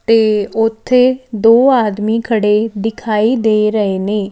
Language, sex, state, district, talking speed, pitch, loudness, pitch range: Punjabi, female, Chandigarh, Chandigarh, 140 wpm, 220 Hz, -13 LUFS, 210-230 Hz